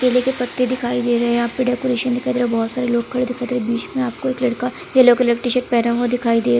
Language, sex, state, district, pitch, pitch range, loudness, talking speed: Hindi, female, Bihar, Saran, 245 Hz, 235-250 Hz, -18 LUFS, 310 wpm